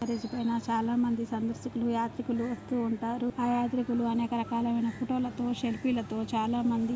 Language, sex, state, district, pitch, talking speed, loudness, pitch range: Telugu, female, Andhra Pradesh, Krishna, 235 Hz, 105 wpm, -31 LUFS, 230-245 Hz